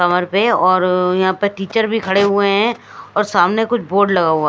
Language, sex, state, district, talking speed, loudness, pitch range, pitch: Hindi, female, Chandigarh, Chandigarh, 200 wpm, -15 LUFS, 180-210 Hz, 195 Hz